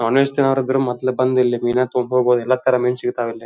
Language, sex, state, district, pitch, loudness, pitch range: Kannada, male, Karnataka, Dharwad, 125 Hz, -18 LUFS, 125-130 Hz